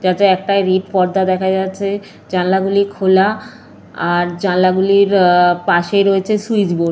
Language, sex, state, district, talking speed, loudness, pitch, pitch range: Bengali, female, Jharkhand, Jamtara, 130 wpm, -14 LUFS, 190 Hz, 185-200 Hz